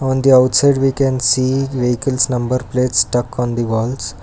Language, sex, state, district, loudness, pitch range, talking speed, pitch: English, male, Karnataka, Bangalore, -15 LUFS, 120-135 Hz, 185 wpm, 125 Hz